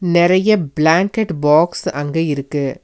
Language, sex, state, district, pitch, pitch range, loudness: Tamil, female, Tamil Nadu, Nilgiris, 160 Hz, 150-180 Hz, -16 LUFS